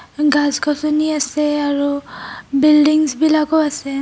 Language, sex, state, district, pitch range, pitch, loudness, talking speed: Assamese, female, Assam, Kamrup Metropolitan, 285-305 Hz, 300 Hz, -16 LUFS, 105 wpm